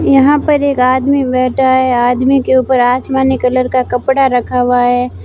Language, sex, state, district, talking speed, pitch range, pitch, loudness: Hindi, female, Rajasthan, Barmer, 185 wpm, 250-270 Hz, 260 Hz, -12 LUFS